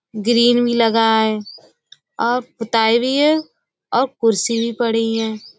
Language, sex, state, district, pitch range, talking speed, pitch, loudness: Hindi, female, Uttar Pradesh, Budaun, 225-240 Hz, 140 wpm, 230 Hz, -17 LUFS